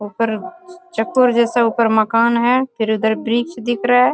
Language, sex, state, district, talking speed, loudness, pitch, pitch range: Hindi, female, Bihar, Bhagalpur, 175 wpm, -17 LUFS, 235 Hz, 225-245 Hz